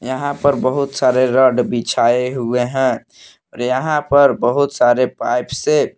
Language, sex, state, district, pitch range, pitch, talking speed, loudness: Hindi, male, Jharkhand, Palamu, 125-140 Hz, 130 Hz, 150 wpm, -16 LUFS